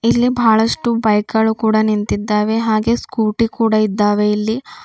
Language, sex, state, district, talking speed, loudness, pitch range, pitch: Kannada, female, Karnataka, Bidar, 135 wpm, -16 LUFS, 215-230 Hz, 220 Hz